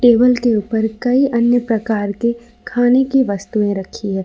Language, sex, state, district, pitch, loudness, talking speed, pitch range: Hindi, female, Jharkhand, Ranchi, 235 Hz, -16 LUFS, 170 wpm, 210-245 Hz